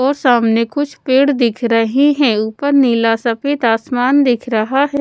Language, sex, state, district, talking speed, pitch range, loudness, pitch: Hindi, female, Odisha, Nuapada, 170 wpm, 230-280 Hz, -14 LUFS, 250 Hz